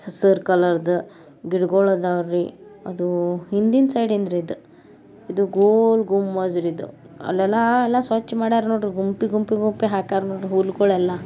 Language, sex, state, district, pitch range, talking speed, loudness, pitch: Kannada, female, Karnataka, Bijapur, 180-215 Hz, 135 wpm, -20 LUFS, 195 Hz